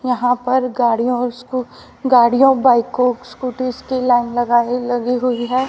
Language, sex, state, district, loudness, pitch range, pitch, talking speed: Hindi, female, Haryana, Rohtak, -17 LUFS, 245-255 Hz, 250 Hz, 150 wpm